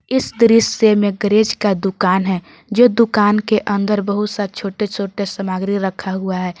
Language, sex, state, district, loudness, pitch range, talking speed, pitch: Hindi, female, Jharkhand, Garhwa, -16 LUFS, 195-215 Hz, 170 wpm, 205 Hz